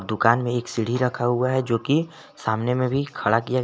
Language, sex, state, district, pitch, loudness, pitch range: Hindi, male, Jharkhand, Garhwa, 120 Hz, -23 LUFS, 115-130 Hz